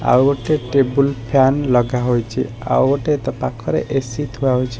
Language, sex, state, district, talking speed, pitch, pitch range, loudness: Odia, male, Odisha, Khordha, 150 wpm, 135 Hz, 125-140 Hz, -18 LUFS